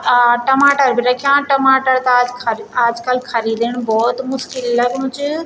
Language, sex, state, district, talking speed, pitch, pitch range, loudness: Garhwali, female, Uttarakhand, Tehri Garhwal, 155 wpm, 250 Hz, 240-265 Hz, -15 LUFS